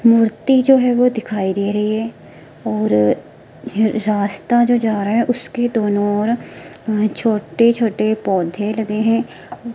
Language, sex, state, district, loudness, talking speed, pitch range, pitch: Hindi, female, Himachal Pradesh, Shimla, -17 LUFS, 140 wpm, 205-235 Hz, 220 Hz